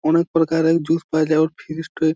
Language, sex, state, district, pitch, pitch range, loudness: Bengali, male, West Bengal, Malda, 160 Hz, 155-165 Hz, -19 LUFS